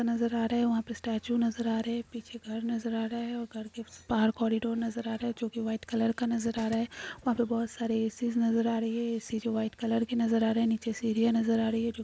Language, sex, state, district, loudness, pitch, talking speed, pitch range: Hindi, female, Chhattisgarh, Jashpur, -31 LUFS, 230 Hz, 300 wpm, 225-235 Hz